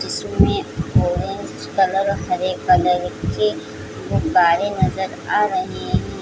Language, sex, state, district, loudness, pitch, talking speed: Hindi, female, Chhattisgarh, Bilaspur, -19 LUFS, 180 Hz, 115 wpm